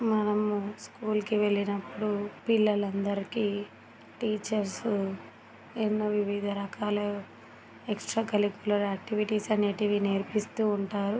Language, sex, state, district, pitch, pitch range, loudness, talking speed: Telugu, female, Telangana, Nalgonda, 205 Hz, 200-215 Hz, -30 LUFS, 85 wpm